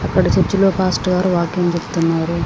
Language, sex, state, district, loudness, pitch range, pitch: Telugu, female, Andhra Pradesh, Srikakulam, -17 LUFS, 170-185 Hz, 175 Hz